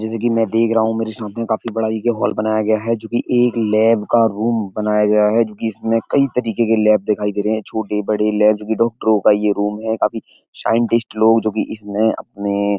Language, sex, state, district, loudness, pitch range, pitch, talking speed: Hindi, male, Uttar Pradesh, Etah, -17 LUFS, 105-115 Hz, 110 Hz, 250 wpm